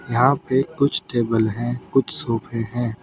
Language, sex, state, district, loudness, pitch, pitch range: Hindi, male, Uttar Pradesh, Saharanpur, -21 LUFS, 120 Hz, 115-135 Hz